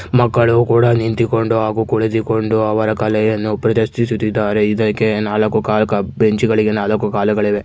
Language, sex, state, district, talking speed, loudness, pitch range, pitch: Kannada, male, Karnataka, Mysore, 120 wpm, -16 LUFS, 105-115 Hz, 110 Hz